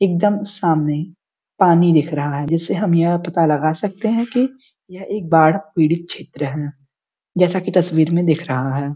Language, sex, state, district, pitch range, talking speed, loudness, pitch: Hindi, female, Uttar Pradesh, Gorakhpur, 150-190 Hz, 180 wpm, -18 LUFS, 170 Hz